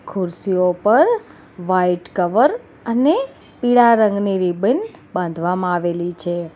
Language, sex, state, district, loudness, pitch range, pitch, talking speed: Gujarati, female, Gujarat, Valsad, -18 LUFS, 175-240 Hz, 185 Hz, 100 wpm